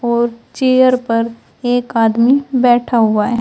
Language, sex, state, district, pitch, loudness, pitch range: Hindi, female, Uttar Pradesh, Shamli, 240 Hz, -14 LUFS, 230-250 Hz